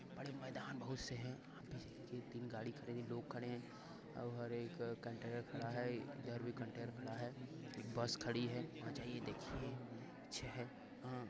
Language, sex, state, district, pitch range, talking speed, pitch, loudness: Hindi, male, Uttar Pradesh, Varanasi, 120-125 Hz, 175 wpm, 120 Hz, -48 LUFS